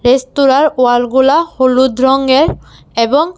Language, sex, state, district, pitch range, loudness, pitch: Bengali, female, Tripura, West Tripura, 255-285 Hz, -11 LUFS, 265 Hz